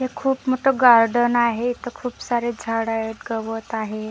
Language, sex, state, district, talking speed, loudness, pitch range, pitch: Marathi, female, Maharashtra, Gondia, 175 wpm, -21 LUFS, 225-245 Hz, 235 Hz